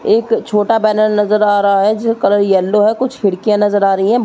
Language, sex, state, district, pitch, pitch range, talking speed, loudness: Hindi, female, Uttar Pradesh, Muzaffarnagar, 210 Hz, 205-225 Hz, 270 wpm, -13 LUFS